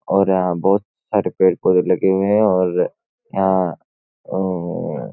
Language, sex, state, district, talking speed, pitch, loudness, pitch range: Hindi, male, Uttarakhand, Uttarkashi, 115 wpm, 95 Hz, -18 LUFS, 90-95 Hz